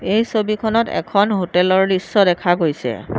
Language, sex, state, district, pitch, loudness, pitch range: Assamese, female, Assam, Sonitpur, 190 Hz, -17 LUFS, 175-215 Hz